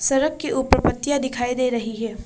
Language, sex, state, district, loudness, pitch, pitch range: Hindi, female, Arunachal Pradesh, Papum Pare, -22 LUFS, 255 Hz, 235-280 Hz